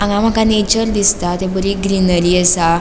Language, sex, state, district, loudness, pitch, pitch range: Konkani, female, Goa, North and South Goa, -14 LUFS, 195 Hz, 180-210 Hz